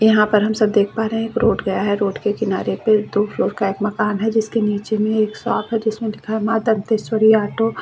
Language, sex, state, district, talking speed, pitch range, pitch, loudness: Hindi, female, Chhattisgarh, Bastar, 270 wpm, 210-220 Hz, 215 Hz, -19 LUFS